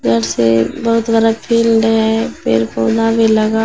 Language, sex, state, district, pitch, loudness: Hindi, female, Bihar, Katihar, 225 Hz, -14 LUFS